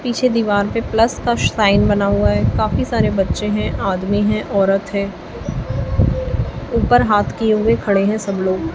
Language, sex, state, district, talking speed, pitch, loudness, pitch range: Hindi, female, Chhattisgarh, Raipur, 170 wpm, 200 Hz, -17 LUFS, 190-220 Hz